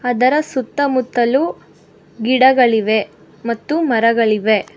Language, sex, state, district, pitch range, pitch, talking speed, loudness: Kannada, female, Karnataka, Bangalore, 225-260 Hz, 245 Hz, 65 wpm, -16 LUFS